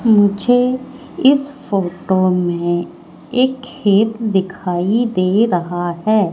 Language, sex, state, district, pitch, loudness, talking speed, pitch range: Hindi, female, Madhya Pradesh, Katni, 205 Hz, -16 LUFS, 95 wpm, 185-250 Hz